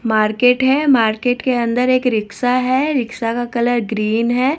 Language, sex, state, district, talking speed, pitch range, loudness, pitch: Hindi, female, Bihar, Katihar, 170 wpm, 230-255 Hz, -16 LUFS, 245 Hz